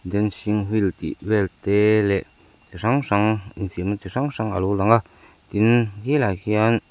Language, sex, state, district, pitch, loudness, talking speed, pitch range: Mizo, male, Mizoram, Aizawl, 105 Hz, -21 LUFS, 165 wpm, 100-110 Hz